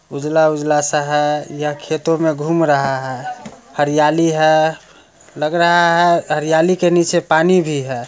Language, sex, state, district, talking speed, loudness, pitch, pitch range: Hindi, male, Bihar, Muzaffarpur, 150 wpm, -15 LUFS, 155 Hz, 150-165 Hz